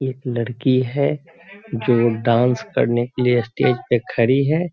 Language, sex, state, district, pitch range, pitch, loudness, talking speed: Hindi, male, Bihar, Sitamarhi, 120-140 Hz, 125 Hz, -19 LUFS, 150 wpm